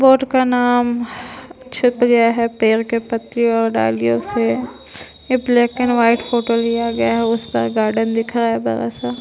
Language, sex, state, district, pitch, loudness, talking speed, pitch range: Hindi, female, Bihar, Vaishali, 230 Hz, -17 LUFS, 175 wpm, 215-240 Hz